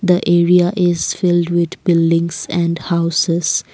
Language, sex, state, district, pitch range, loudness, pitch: English, female, Assam, Kamrup Metropolitan, 170-175 Hz, -15 LUFS, 170 Hz